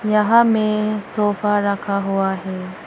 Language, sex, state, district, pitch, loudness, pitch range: Hindi, female, Arunachal Pradesh, Longding, 205 Hz, -19 LUFS, 195-215 Hz